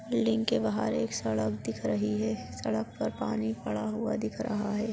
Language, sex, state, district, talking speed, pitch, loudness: Hindi, female, Maharashtra, Solapur, 195 wpm, 110 Hz, -31 LUFS